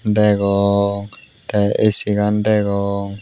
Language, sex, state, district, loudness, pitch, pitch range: Chakma, male, Tripura, Unakoti, -16 LUFS, 100 Hz, 100-105 Hz